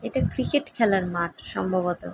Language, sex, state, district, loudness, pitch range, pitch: Bengali, female, West Bengal, Jalpaiguri, -25 LUFS, 170-220 Hz, 185 Hz